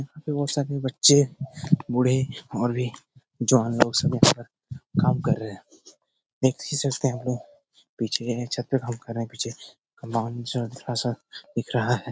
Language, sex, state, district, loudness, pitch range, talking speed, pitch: Hindi, male, Bihar, Jahanabad, -25 LUFS, 120-140 Hz, 160 wpm, 125 Hz